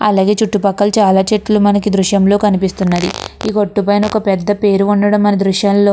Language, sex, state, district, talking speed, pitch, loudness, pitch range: Telugu, female, Andhra Pradesh, Krishna, 215 wpm, 205 Hz, -13 LUFS, 195-210 Hz